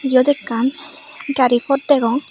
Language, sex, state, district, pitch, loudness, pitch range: Chakma, female, Tripura, West Tripura, 275 Hz, -17 LUFS, 255-290 Hz